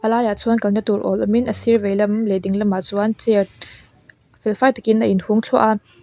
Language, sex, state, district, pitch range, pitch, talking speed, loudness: Mizo, female, Mizoram, Aizawl, 205-225 Hz, 215 Hz, 210 wpm, -18 LUFS